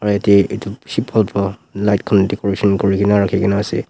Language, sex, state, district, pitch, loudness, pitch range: Nagamese, male, Nagaland, Dimapur, 100 Hz, -16 LUFS, 100-105 Hz